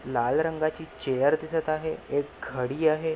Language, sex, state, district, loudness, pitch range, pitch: Marathi, male, Maharashtra, Nagpur, -27 LUFS, 130-160 Hz, 155 Hz